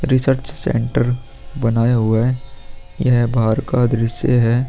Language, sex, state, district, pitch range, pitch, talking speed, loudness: Hindi, male, Bihar, Vaishali, 115-130 Hz, 120 Hz, 130 wpm, -18 LUFS